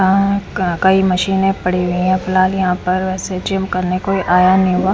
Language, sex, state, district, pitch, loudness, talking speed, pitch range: Hindi, female, Punjab, Fazilka, 185 Hz, -15 LUFS, 205 wpm, 180-190 Hz